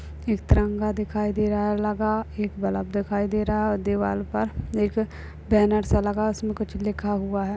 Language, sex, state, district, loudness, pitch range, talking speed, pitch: Hindi, female, Rajasthan, Churu, -25 LUFS, 200-215 Hz, 190 wpm, 210 Hz